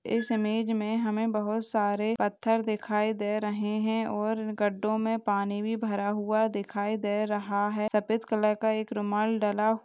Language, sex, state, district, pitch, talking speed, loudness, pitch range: Hindi, female, Jharkhand, Sahebganj, 215 Hz, 175 wpm, -29 LUFS, 210-220 Hz